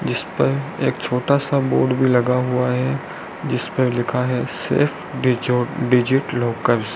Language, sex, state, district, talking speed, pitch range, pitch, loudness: Hindi, male, Rajasthan, Bikaner, 145 wpm, 120-130 Hz, 125 Hz, -20 LUFS